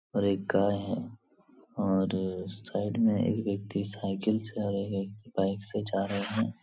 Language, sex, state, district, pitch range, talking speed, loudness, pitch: Hindi, male, Bihar, Supaul, 95-105 Hz, 180 wpm, -31 LUFS, 100 Hz